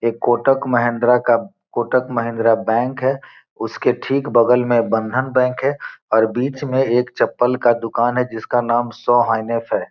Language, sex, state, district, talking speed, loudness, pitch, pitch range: Hindi, male, Bihar, Gopalganj, 165 wpm, -18 LUFS, 120 Hz, 115-125 Hz